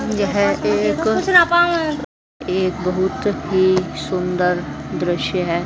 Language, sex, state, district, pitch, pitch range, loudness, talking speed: Hindi, female, Haryana, Charkhi Dadri, 185 Hz, 175-205 Hz, -18 LUFS, 85 wpm